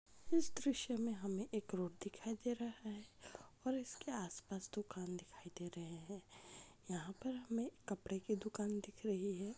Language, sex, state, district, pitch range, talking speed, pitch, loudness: Hindi, female, Rajasthan, Nagaur, 190-235 Hz, 170 wpm, 210 Hz, -45 LUFS